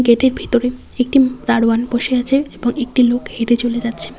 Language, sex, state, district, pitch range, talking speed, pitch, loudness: Bengali, female, West Bengal, Cooch Behar, 235-255 Hz, 170 wpm, 245 Hz, -16 LUFS